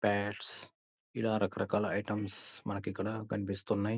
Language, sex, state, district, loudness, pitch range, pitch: Telugu, male, Andhra Pradesh, Guntur, -36 LUFS, 100-105 Hz, 105 Hz